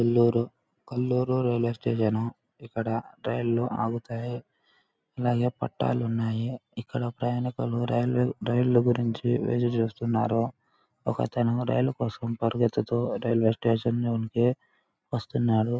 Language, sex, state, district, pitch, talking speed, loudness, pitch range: Telugu, male, Andhra Pradesh, Anantapur, 120 Hz, 95 wpm, -27 LUFS, 115-120 Hz